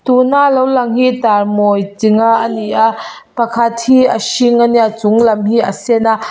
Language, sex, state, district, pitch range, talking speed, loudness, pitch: Mizo, female, Mizoram, Aizawl, 220-245 Hz, 200 wpm, -12 LUFS, 230 Hz